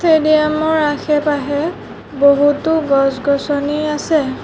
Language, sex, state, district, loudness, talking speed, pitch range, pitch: Assamese, female, Assam, Sonitpur, -15 LUFS, 80 wpm, 285-310 Hz, 295 Hz